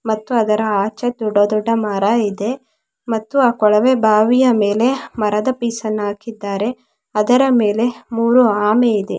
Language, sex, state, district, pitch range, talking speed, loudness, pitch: Kannada, female, Karnataka, Mysore, 210-240 Hz, 135 wpm, -16 LUFS, 220 Hz